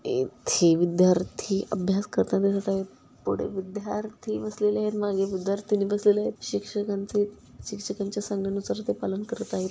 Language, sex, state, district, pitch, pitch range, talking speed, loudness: Marathi, female, Maharashtra, Dhule, 200 Hz, 195-210 Hz, 115 wpm, -27 LUFS